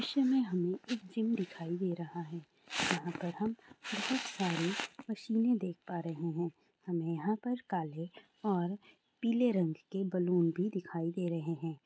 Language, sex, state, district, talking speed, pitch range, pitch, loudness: Hindi, female, Andhra Pradesh, Chittoor, 165 wpm, 170-220 Hz, 180 Hz, -35 LUFS